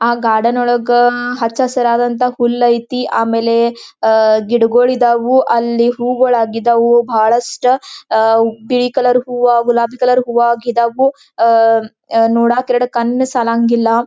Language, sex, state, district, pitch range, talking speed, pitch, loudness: Kannada, female, Karnataka, Belgaum, 230-245 Hz, 120 wpm, 240 Hz, -13 LUFS